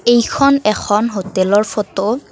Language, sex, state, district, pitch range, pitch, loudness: Assamese, female, Assam, Kamrup Metropolitan, 205-240 Hz, 215 Hz, -15 LUFS